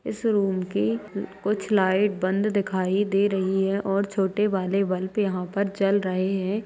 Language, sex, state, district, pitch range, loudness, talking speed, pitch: Hindi, female, Bihar, Madhepura, 190-205 Hz, -24 LUFS, 170 wpm, 195 Hz